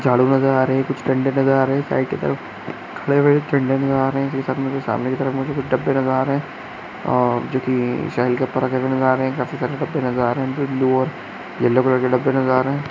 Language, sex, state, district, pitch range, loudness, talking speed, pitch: Hindi, male, Andhra Pradesh, Chittoor, 130-135 Hz, -19 LUFS, 200 wpm, 130 Hz